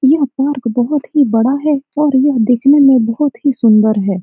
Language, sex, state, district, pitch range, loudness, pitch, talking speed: Hindi, female, Bihar, Saran, 230-290 Hz, -13 LUFS, 270 Hz, 200 wpm